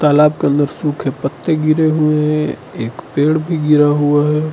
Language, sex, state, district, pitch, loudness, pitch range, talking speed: Hindi, male, Arunachal Pradesh, Lower Dibang Valley, 150 Hz, -15 LUFS, 145-155 Hz, 170 wpm